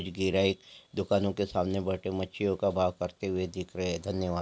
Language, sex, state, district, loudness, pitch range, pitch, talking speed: Marwari, male, Rajasthan, Nagaur, -31 LUFS, 90-100 Hz, 95 Hz, 190 wpm